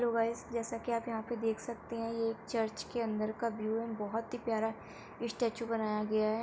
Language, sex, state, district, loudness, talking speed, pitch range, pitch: Hindi, female, Uttar Pradesh, Etah, -36 LUFS, 235 wpm, 220-235 Hz, 230 Hz